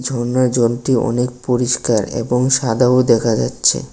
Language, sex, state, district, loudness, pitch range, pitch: Bengali, male, Tripura, West Tripura, -16 LUFS, 120-125 Hz, 125 Hz